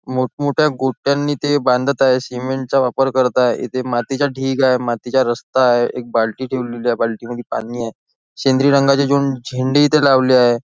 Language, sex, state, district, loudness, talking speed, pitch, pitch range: Marathi, male, Maharashtra, Nagpur, -17 LUFS, 175 wpm, 130 Hz, 120-140 Hz